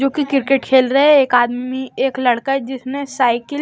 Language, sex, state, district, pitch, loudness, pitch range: Hindi, male, Maharashtra, Washim, 265 Hz, -16 LUFS, 255-275 Hz